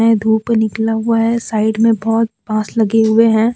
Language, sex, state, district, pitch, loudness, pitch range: Hindi, female, Jharkhand, Deoghar, 225 Hz, -14 LUFS, 220-230 Hz